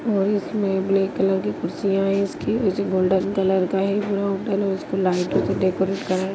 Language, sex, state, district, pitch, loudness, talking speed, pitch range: Hindi, female, Chhattisgarh, Bastar, 195 Hz, -22 LUFS, 190 wpm, 190-200 Hz